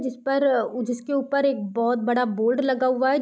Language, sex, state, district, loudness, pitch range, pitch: Hindi, female, Uttar Pradesh, Deoria, -23 LUFS, 240-275 Hz, 255 Hz